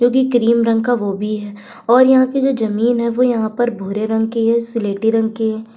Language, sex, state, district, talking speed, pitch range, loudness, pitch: Hindi, female, Uttar Pradesh, Budaun, 250 wpm, 220-240 Hz, -16 LUFS, 230 Hz